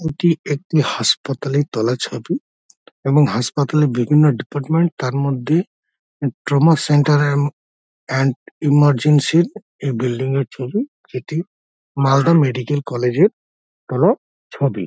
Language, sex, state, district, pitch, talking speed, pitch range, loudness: Bengali, male, West Bengal, Dakshin Dinajpur, 140 Hz, 100 wpm, 130-150 Hz, -18 LUFS